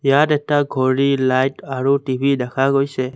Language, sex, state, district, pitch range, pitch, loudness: Assamese, male, Assam, Kamrup Metropolitan, 130-140 Hz, 135 Hz, -18 LUFS